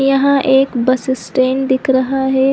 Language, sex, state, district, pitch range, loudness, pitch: Hindi, female, Chhattisgarh, Bilaspur, 260-270 Hz, -14 LUFS, 265 Hz